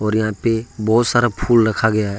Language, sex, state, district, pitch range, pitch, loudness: Hindi, male, Jharkhand, Ranchi, 105-115 Hz, 110 Hz, -17 LUFS